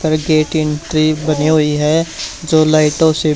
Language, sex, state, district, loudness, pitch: Hindi, male, Haryana, Charkhi Dadri, -14 LUFS, 155 Hz